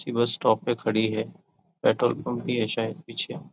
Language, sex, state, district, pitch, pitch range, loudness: Hindi, male, Chhattisgarh, Raigarh, 115 Hz, 110-120 Hz, -26 LUFS